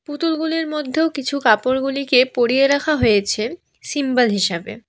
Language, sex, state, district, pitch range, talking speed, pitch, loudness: Bengali, female, West Bengal, Alipurduar, 230-300 Hz, 110 wpm, 265 Hz, -18 LUFS